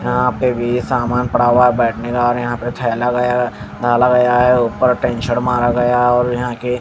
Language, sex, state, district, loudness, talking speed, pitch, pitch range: Hindi, male, Haryana, Jhajjar, -15 LUFS, 200 wpm, 125 Hz, 120-125 Hz